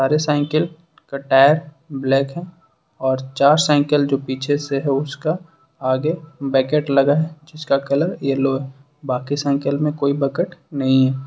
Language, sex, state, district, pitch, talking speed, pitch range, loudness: Hindi, male, Jharkhand, Ranchi, 140 Hz, 140 wpm, 135-155 Hz, -19 LUFS